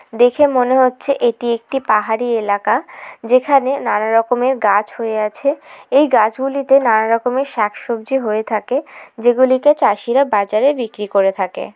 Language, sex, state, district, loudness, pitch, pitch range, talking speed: Bengali, female, West Bengal, Jalpaiguri, -16 LUFS, 240 Hz, 215-270 Hz, 125 wpm